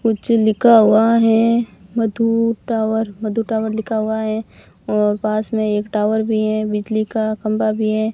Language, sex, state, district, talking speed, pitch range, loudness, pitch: Hindi, female, Rajasthan, Barmer, 170 wpm, 215-225 Hz, -17 LUFS, 220 Hz